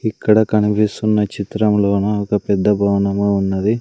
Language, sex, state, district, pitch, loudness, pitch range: Telugu, male, Andhra Pradesh, Sri Satya Sai, 105 Hz, -16 LUFS, 100-105 Hz